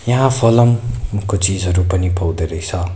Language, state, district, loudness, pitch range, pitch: Nepali, West Bengal, Darjeeling, -16 LUFS, 90-120 Hz, 95 Hz